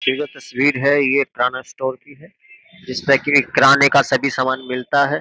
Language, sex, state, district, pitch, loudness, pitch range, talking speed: Hindi, male, Uttar Pradesh, Jyotiba Phule Nagar, 140 Hz, -17 LUFS, 130-145 Hz, 195 wpm